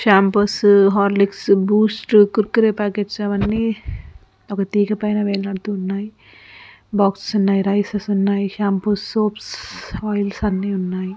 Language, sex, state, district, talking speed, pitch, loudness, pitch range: Telugu, female, Telangana, Karimnagar, 115 wpm, 200 Hz, -18 LUFS, 195-210 Hz